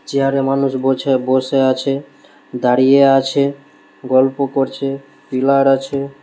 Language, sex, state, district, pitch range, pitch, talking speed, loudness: Bengali, male, West Bengal, Malda, 130-135 Hz, 135 Hz, 105 wpm, -16 LUFS